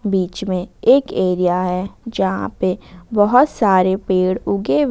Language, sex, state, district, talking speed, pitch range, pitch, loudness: Hindi, female, Jharkhand, Ranchi, 145 wpm, 180-200 Hz, 185 Hz, -17 LUFS